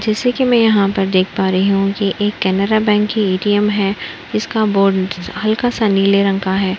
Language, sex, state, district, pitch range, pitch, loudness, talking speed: Hindi, female, Uttar Pradesh, Budaun, 195-215 Hz, 200 Hz, -15 LUFS, 220 wpm